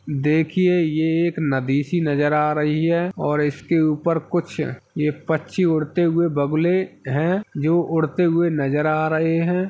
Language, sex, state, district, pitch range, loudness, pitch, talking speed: Hindi, male, Uttar Pradesh, Hamirpur, 150-170 Hz, -20 LUFS, 160 Hz, 160 wpm